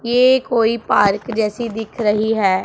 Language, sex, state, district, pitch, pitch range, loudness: Hindi, female, Punjab, Pathankot, 225 Hz, 210-235 Hz, -17 LUFS